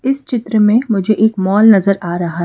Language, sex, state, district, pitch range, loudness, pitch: Hindi, female, Madhya Pradesh, Bhopal, 190-225 Hz, -13 LUFS, 215 Hz